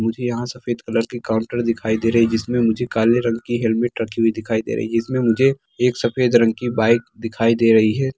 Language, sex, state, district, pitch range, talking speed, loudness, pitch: Hindi, male, Bihar, Darbhanga, 115-120 Hz, 240 wpm, -19 LUFS, 115 Hz